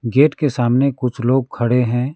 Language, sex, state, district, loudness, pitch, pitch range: Hindi, male, West Bengal, Alipurduar, -17 LUFS, 125 Hz, 120-140 Hz